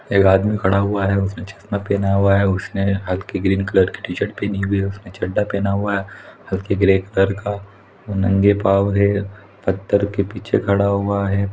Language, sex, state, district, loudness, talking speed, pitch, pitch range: Hindi, male, Chhattisgarh, Raigarh, -19 LUFS, 180 wpm, 100 Hz, 95-100 Hz